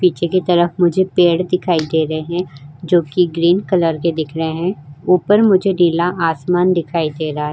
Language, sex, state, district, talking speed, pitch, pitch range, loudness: Hindi, female, Uttar Pradesh, Jyotiba Phule Nagar, 190 wpm, 175 Hz, 160-180 Hz, -16 LUFS